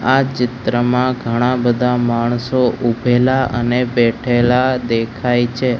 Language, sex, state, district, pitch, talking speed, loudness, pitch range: Gujarati, male, Gujarat, Gandhinagar, 125 Hz, 105 wpm, -16 LUFS, 120-125 Hz